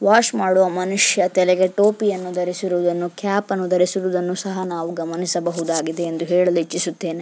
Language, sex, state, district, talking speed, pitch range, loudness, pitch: Kannada, female, Karnataka, Dharwad, 125 wpm, 175-190 Hz, -20 LUFS, 180 Hz